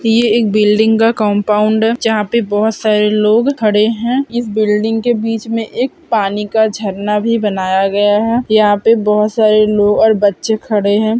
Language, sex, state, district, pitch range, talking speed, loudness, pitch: Hindi, female, Uttarakhand, Tehri Garhwal, 210-225 Hz, 185 wpm, -13 LUFS, 215 Hz